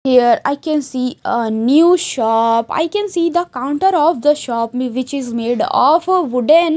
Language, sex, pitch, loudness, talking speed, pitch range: English, female, 280 Hz, -15 LUFS, 175 wpm, 245-335 Hz